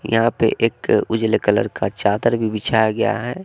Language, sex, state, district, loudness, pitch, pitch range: Hindi, male, Bihar, West Champaran, -19 LUFS, 110 Hz, 105-115 Hz